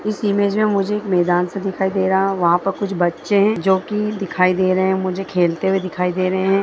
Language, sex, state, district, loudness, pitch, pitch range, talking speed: Hindi, female, Bihar, Begusarai, -18 LUFS, 190 Hz, 185-200 Hz, 255 wpm